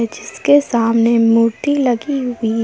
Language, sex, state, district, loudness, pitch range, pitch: Hindi, female, Jharkhand, Palamu, -15 LUFS, 230-265 Hz, 230 Hz